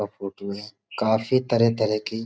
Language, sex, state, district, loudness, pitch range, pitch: Hindi, male, Uttar Pradesh, Budaun, -24 LUFS, 100-115 Hz, 110 Hz